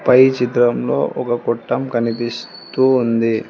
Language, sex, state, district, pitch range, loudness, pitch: Telugu, female, Telangana, Hyderabad, 115-125 Hz, -17 LUFS, 120 Hz